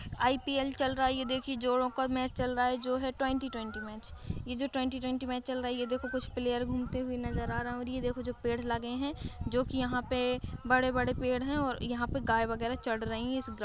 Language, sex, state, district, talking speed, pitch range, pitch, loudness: Hindi, female, Bihar, Lakhisarai, 270 wpm, 245-260 Hz, 250 Hz, -33 LUFS